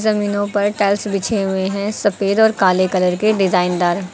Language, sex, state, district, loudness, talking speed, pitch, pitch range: Hindi, female, Uttar Pradesh, Lucknow, -17 LUFS, 175 wpm, 200 Hz, 185-205 Hz